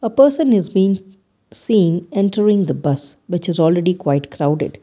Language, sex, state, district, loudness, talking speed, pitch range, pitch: English, female, Karnataka, Bangalore, -17 LUFS, 160 wpm, 155-205 Hz, 185 Hz